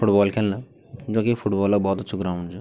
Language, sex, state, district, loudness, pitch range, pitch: Garhwali, male, Uttarakhand, Tehri Garhwal, -23 LUFS, 95-115 Hz, 100 Hz